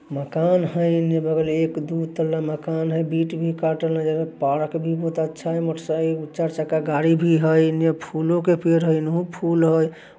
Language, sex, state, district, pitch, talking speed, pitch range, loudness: Magahi, male, Bihar, Samastipur, 160 Hz, 180 wpm, 160-165 Hz, -21 LUFS